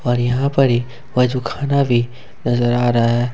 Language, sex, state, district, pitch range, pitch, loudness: Hindi, male, Jharkhand, Ranchi, 120-130 Hz, 120 Hz, -17 LUFS